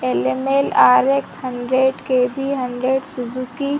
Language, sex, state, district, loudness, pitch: Hindi, female, Chhattisgarh, Rajnandgaon, -18 LUFS, 255 Hz